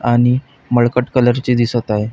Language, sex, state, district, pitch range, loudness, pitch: Marathi, male, Maharashtra, Pune, 120-125 Hz, -15 LUFS, 120 Hz